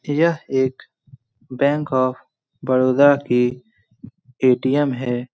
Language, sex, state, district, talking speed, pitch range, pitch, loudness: Hindi, male, Bihar, Lakhisarai, 90 wpm, 125-140 Hz, 130 Hz, -19 LUFS